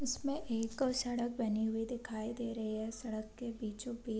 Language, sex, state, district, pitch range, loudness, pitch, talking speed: Hindi, female, Bihar, Sitamarhi, 220-245 Hz, -38 LUFS, 230 Hz, 185 wpm